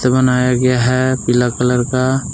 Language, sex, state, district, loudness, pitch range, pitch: Hindi, male, Jharkhand, Palamu, -15 LUFS, 125-130 Hz, 125 Hz